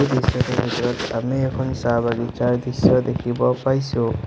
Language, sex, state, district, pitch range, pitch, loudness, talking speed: Assamese, male, Assam, Sonitpur, 120-130 Hz, 125 Hz, -21 LUFS, 125 wpm